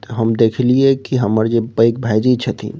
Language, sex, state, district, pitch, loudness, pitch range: Maithili, male, Bihar, Saharsa, 115 Hz, -15 LUFS, 115-125 Hz